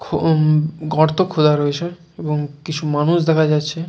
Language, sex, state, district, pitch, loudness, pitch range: Bengali, male, West Bengal, Jalpaiguri, 155 Hz, -18 LUFS, 150-165 Hz